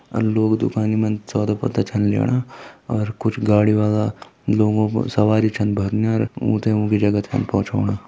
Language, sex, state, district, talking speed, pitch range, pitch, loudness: Hindi, male, Uttarakhand, Tehri Garhwal, 165 wpm, 105-110 Hz, 110 Hz, -20 LUFS